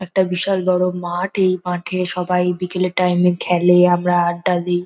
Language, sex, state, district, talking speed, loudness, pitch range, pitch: Bengali, female, West Bengal, North 24 Parganas, 175 wpm, -17 LUFS, 180-185 Hz, 180 Hz